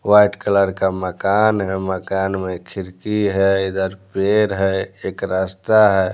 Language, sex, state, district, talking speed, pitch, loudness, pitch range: Hindi, male, Bihar, Patna, 145 wpm, 95 Hz, -18 LUFS, 95-100 Hz